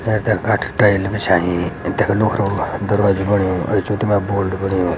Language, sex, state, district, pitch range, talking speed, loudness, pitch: Garhwali, male, Uttarakhand, Uttarkashi, 95-105 Hz, 180 wpm, -18 LUFS, 100 Hz